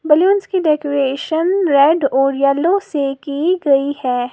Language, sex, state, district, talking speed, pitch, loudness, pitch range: Hindi, female, Uttar Pradesh, Lalitpur, 140 wpm, 290 Hz, -16 LUFS, 275-330 Hz